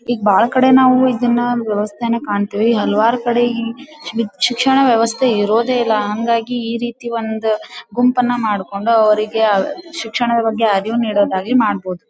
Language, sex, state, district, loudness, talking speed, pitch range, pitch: Kannada, female, Karnataka, Dharwad, -16 LUFS, 125 wpm, 215-245 Hz, 230 Hz